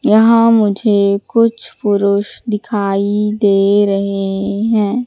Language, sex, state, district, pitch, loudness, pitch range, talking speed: Hindi, female, Madhya Pradesh, Katni, 205 Hz, -14 LUFS, 200-220 Hz, 95 wpm